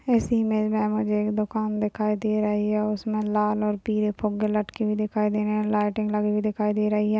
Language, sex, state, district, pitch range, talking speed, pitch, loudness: Hindi, female, Bihar, Kishanganj, 210-215 Hz, 235 wpm, 210 Hz, -25 LUFS